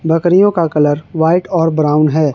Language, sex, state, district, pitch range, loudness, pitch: Hindi, male, Jharkhand, Garhwa, 150-170 Hz, -13 LUFS, 160 Hz